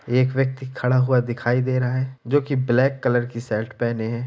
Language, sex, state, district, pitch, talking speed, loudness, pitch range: Hindi, male, Bihar, Gopalganj, 125 Hz, 225 wpm, -22 LUFS, 120-130 Hz